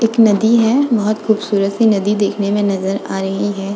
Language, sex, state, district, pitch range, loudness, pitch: Hindi, female, Uttar Pradesh, Budaun, 200-220 Hz, -15 LUFS, 205 Hz